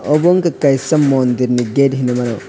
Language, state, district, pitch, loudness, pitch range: Kokborok, Tripura, West Tripura, 135 Hz, -14 LUFS, 125-150 Hz